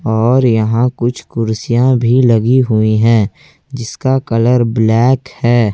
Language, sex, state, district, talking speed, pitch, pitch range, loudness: Hindi, male, Jharkhand, Ranchi, 125 wpm, 120 Hz, 115-130 Hz, -13 LUFS